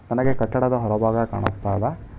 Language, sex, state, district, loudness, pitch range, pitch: Kannada, male, Karnataka, Bangalore, -22 LUFS, 105-125 Hz, 115 Hz